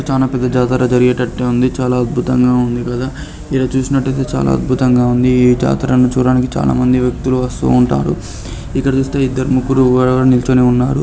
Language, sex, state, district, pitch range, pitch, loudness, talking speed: Telugu, male, Andhra Pradesh, Srikakulam, 125-130 Hz, 125 Hz, -14 LUFS, 145 wpm